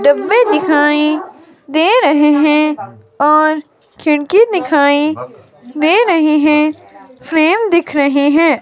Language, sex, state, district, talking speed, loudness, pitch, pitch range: Hindi, female, Himachal Pradesh, Shimla, 105 wpm, -12 LUFS, 305 Hz, 295-330 Hz